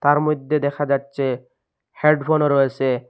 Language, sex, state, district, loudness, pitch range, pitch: Bengali, male, Assam, Hailakandi, -20 LUFS, 135-150 Hz, 140 Hz